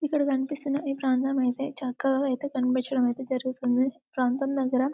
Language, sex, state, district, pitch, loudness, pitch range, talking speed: Telugu, female, Telangana, Karimnagar, 265 Hz, -27 LUFS, 255-275 Hz, 145 wpm